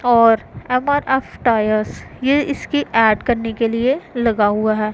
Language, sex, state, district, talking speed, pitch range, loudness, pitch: Hindi, female, Punjab, Pathankot, 145 wpm, 220-265 Hz, -17 LUFS, 235 Hz